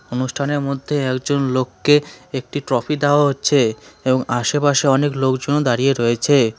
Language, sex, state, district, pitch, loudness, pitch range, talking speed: Bengali, male, West Bengal, Cooch Behar, 140 Hz, -18 LUFS, 130-145 Hz, 125 wpm